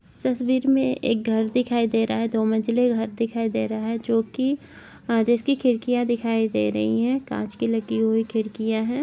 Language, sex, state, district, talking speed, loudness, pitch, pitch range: Hindi, female, Chhattisgarh, Jashpur, 190 wpm, -23 LUFS, 230 Hz, 220-245 Hz